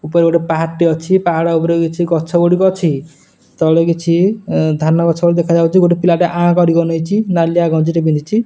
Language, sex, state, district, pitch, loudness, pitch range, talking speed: Odia, male, Odisha, Nuapada, 170 Hz, -13 LUFS, 165-175 Hz, 215 wpm